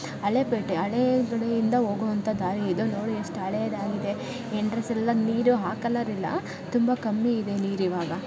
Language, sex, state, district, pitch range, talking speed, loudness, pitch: Kannada, female, Karnataka, Shimoga, 200-235 Hz, 140 wpm, -26 LUFS, 215 Hz